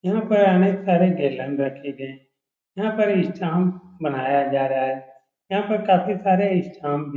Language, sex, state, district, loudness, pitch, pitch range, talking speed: Hindi, male, Uttar Pradesh, Etah, -21 LUFS, 175 Hz, 135-190 Hz, 185 wpm